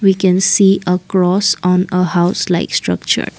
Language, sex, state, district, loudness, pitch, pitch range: English, female, Assam, Kamrup Metropolitan, -14 LUFS, 185 Hz, 180-195 Hz